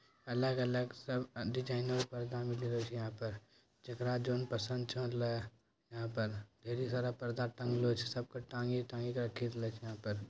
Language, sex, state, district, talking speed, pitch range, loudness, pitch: Maithili, male, Bihar, Bhagalpur, 190 wpm, 115-125 Hz, -39 LUFS, 120 Hz